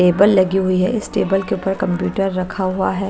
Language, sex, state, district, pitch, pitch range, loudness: Hindi, female, Odisha, Malkangiri, 190 Hz, 185-195 Hz, -18 LUFS